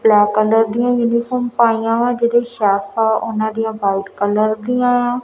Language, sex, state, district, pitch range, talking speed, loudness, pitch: Punjabi, female, Punjab, Kapurthala, 215-240 Hz, 160 wpm, -16 LUFS, 225 Hz